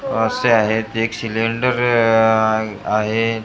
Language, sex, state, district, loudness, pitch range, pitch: Marathi, male, Maharashtra, Gondia, -17 LUFS, 110-115 Hz, 115 Hz